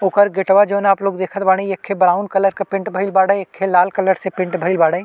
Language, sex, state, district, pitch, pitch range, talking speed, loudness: Bhojpuri, male, Uttar Pradesh, Deoria, 195 Hz, 185-195 Hz, 225 wpm, -16 LUFS